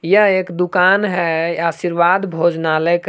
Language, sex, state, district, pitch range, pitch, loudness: Hindi, male, Jharkhand, Palamu, 170-185 Hz, 175 Hz, -16 LUFS